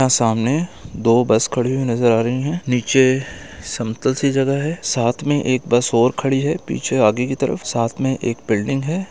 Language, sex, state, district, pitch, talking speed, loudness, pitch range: Hindi, male, Bihar, East Champaran, 130 Hz, 200 wpm, -18 LUFS, 120-135 Hz